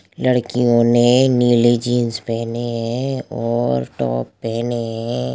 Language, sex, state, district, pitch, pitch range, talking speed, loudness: Hindi, male, Bihar, Sitamarhi, 120 Hz, 115-120 Hz, 110 wpm, -18 LUFS